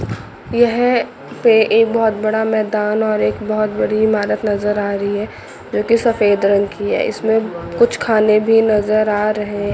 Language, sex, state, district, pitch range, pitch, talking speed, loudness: Hindi, female, Chandigarh, Chandigarh, 205-220 Hz, 215 Hz, 165 wpm, -16 LUFS